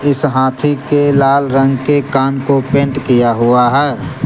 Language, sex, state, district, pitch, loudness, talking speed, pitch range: Hindi, male, Jharkhand, Garhwa, 135 Hz, -12 LUFS, 170 wpm, 130-145 Hz